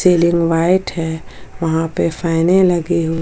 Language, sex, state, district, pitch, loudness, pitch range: Hindi, female, Jharkhand, Palamu, 170 Hz, -16 LUFS, 165-175 Hz